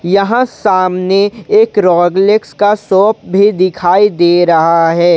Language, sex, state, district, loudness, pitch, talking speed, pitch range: Hindi, male, Jharkhand, Ranchi, -10 LUFS, 190 Hz, 140 wpm, 175-205 Hz